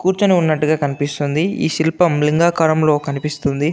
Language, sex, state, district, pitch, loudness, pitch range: Telugu, male, Andhra Pradesh, Anantapur, 155 Hz, -17 LUFS, 145-170 Hz